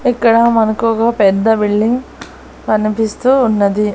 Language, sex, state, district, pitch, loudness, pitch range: Telugu, female, Andhra Pradesh, Annamaya, 225 Hz, -13 LUFS, 210-235 Hz